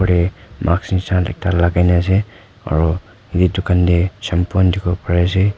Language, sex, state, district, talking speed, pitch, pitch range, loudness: Nagamese, male, Nagaland, Kohima, 150 wpm, 90 Hz, 90-95 Hz, -17 LUFS